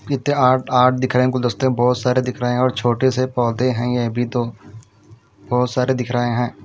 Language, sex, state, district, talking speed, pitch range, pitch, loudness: Hindi, male, Punjab, Fazilka, 215 wpm, 120-130 Hz, 125 Hz, -18 LUFS